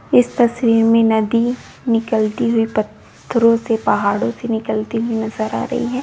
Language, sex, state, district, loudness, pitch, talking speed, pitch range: Hindi, female, Bihar, Jamui, -17 LUFS, 225 Hz, 160 wpm, 215-230 Hz